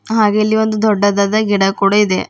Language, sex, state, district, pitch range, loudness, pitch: Kannada, female, Karnataka, Bidar, 200-215 Hz, -14 LUFS, 210 Hz